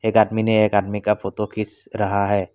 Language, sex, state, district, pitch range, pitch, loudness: Hindi, male, Assam, Kamrup Metropolitan, 100-110 Hz, 105 Hz, -21 LUFS